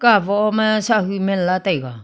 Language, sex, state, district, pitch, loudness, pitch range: Wancho, female, Arunachal Pradesh, Longding, 195 Hz, -18 LUFS, 185-215 Hz